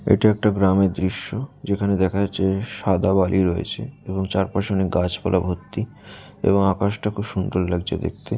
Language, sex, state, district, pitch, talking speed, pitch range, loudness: Bengali, male, West Bengal, Dakshin Dinajpur, 95 Hz, 170 wpm, 95-100 Hz, -22 LUFS